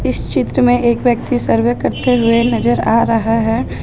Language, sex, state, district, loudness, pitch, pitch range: Hindi, female, Jharkhand, Ranchi, -14 LUFS, 230 Hz, 225-240 Hz